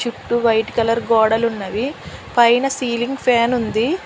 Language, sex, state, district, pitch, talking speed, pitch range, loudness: Telugu, female, Telangana, Hyderabad, 235 Hz, 120 wpm, 225-245 Hz, -18 LUFS